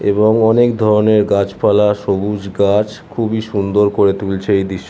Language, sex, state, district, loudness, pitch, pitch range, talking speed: Bengali, male, West Bengal, Jhargram, -14 LUFS, 105 Hz, 100-110 Hz, 145 wpm